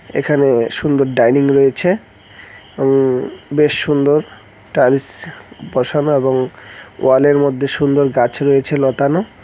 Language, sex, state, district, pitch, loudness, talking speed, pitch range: Bengali, male, West Bengal, Cooch Behar, 140 Hz, -15 LUFS, 100 wpm, 130-145 Hz